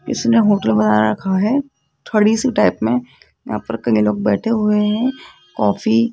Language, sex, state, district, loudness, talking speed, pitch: Hindi, female, Rajasthan, Jaipur, -17 LUFS, 175 wpm, 190 Hz